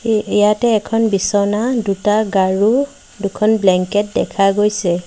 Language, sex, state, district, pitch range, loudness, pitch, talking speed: Assamese, female, Assam, Sonitpur, 195-220 Hz, -16 LUFS, 210 Hz, 120 wpm